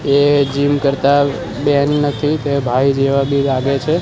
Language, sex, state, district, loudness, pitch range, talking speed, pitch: Gujarati, male, Gujarat, Gandhinagar, -15 LUFS, 140-145 Hz, 165 wpm, 140 Hz